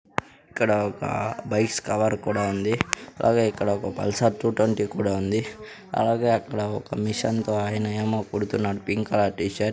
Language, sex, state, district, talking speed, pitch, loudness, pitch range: Telugu, male, Andhra Pradesh, Sri Satya Sai, 160 wpm, 105 Hz, -25 LUFS, 105-110 Hz